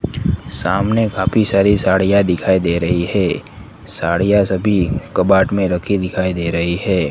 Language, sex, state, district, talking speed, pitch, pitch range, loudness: Hindi, male, Gujarat, Gandhinagar, 145 wpm, 95 Hz, 90-100 Hz, -16 LUFS